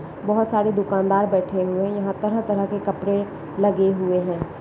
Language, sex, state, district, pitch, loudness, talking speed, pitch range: Hindi, female, Chhattisgarh, Bilaspur, 195 Hz, -22 LUFS, 180 wpm, 190-205 Hz